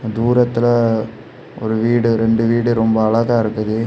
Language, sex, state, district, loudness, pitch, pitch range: Tamil, male, Tamil Nadu, Kanyakumari, -16 LUFS, 115 Hz, 110-120 Hz